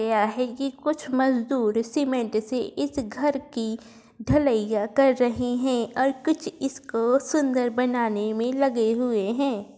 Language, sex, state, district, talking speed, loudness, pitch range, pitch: Hindi, female, Uttar Pradesh, Varanasi, 140 wpm, -24 LUFS, 230-275 Hz, 250 Hz